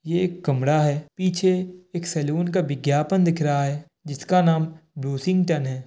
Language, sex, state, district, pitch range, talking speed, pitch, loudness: Hindi, male, Bihar, Kishanganj, 145-180 Hz, 165 wpm, 160 Hz, -23 LUFS